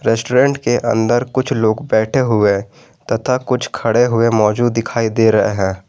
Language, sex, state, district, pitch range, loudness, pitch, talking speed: Hindi, male, Jharkhand, Garhwa, 110-125 Hz, -15 LUFS, 115 Hz, 165 wpm